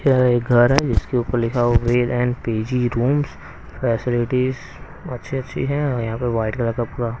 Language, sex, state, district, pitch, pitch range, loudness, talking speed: Hindi, male, Haryana, Rohtak, 120 Hz, 120-125 Hz, -20 LUFS, 185 wpm